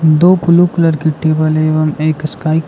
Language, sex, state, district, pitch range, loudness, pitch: Hindi, male, Arunachal Pradesh, Lower Dibang Valley, 155-165 Hz, -12 LUFS, 155 Hz